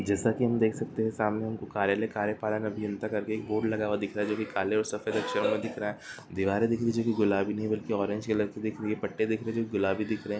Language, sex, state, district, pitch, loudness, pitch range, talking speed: Hindi, male, Chhattisgarh, Korba, 110 Hz, -30 LUFS, 105-110 Hz, 310 wpm